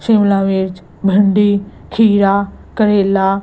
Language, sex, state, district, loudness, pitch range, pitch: Hindi, female, Gujarat, Gandhinagar, -14 LUFS, 195-205 Hz, 200 Hz